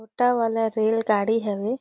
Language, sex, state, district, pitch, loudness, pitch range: Surgujia, female, Chhattisgarh, Sarguja, 225 Hz, -23 LUFS, 215-230 Hz